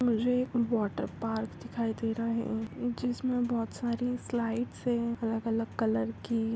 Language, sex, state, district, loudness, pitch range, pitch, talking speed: Hindi, female, Andhra Pradesh, Visakhapatnam, -32 LUFS, 225-245 Hz, 230 Hz, 155 wpm